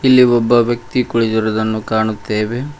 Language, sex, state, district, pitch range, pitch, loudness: Kannada, male, Karnataka, Koppal, 110-125 Hz, 115 Hz, -15 LUFS